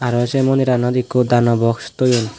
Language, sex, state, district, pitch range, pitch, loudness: Chakma, male, Tripura, West Tripura, 120-130 Hz, 125 Hz, -16 LUFS